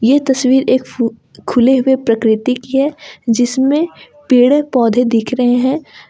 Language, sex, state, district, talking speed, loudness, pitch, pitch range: Hindi, female, Jharkhand, Ranchi, 145 wpm, -14 LUFS, 255 Hz, 240-270 Hz